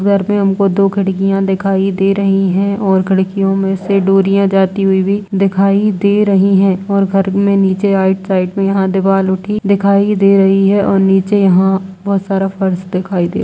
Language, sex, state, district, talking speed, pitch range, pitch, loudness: Hindi, female, Uttar Pradesh, Budaun, 195 wpm, 190-200 Hz, 195 Hz, -12 LUFS